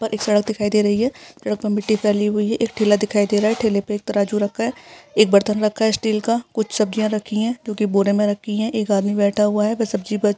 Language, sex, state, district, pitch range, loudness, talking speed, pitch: Hindi, female, Uttarakhand, Uttarkashi, 205-220 Hz, -19 LUFS, 275 wpm, 210 Hz